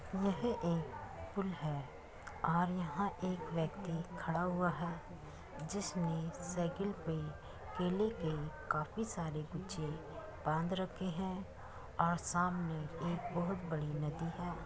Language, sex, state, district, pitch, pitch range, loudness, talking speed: Hindi, female, Uttar Pradesh, Muzaffarnagar, 175 Hz, 160-185 Hz, -39 LUFS, 120 wpm